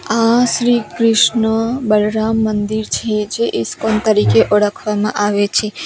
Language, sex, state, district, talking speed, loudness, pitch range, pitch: Gujarati, female, Gujarat, Valsad, 125 wpm, -15 LUFS, 210-225 Hz, 215 Hz